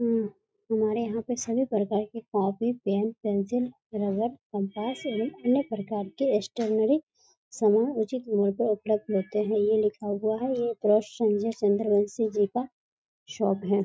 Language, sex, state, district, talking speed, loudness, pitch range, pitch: Hindi, female, Bihar, East Champaran, 150 wpm, -27 LUFS, 205-235 Hz, 215 Hz